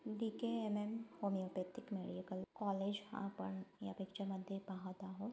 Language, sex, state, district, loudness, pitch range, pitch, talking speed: Marathi, female, Maharashtra, Aurangabad, -45 LUFS, 190-215 Hz, 195 Hz, 125 wpm